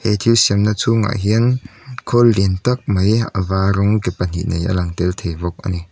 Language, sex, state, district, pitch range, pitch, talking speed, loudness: Mizo, male, Mizoram, Aizawl, 90-115 Hz, 100 Hz, 225 wpm, -17 LUFS